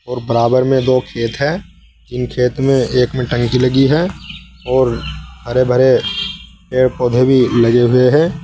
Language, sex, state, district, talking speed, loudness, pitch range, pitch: Hindi, male, Uttar Pradesh, Saharanpur, 165 wpm, -14 LUFS, 120-130 Hz, 125 Hz